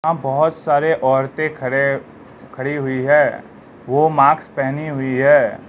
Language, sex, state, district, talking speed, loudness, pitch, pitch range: Hindi, male, Arunachal Pradesh, Lower Dibang Valley, 135 wpm, -17 LUFS, 140 Hz, 135-155 Hz